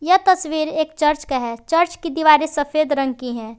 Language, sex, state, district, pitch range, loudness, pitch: Hindi, female, Jharkhand, Garhwa, 275-320 Hz, -18 LUFS, 305 Hz